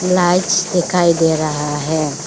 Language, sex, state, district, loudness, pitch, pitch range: Hindi, female, Arunachal Pradesh, Lower Dibang Valley, -15 LUFS, 170 Hz, 155-180 Hz